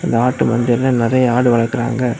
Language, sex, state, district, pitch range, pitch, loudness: Tamil, male, Tamil Nadu, Kanyakumari, 120-125 Hz, 120 Hz, -15 LUFS